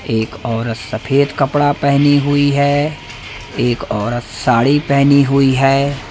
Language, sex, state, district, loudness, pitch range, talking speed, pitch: Hindi, male, Madhya Pradesh, Umaria, -14 LUFS, 115-140 Hz, 130 wpm, 135 Hz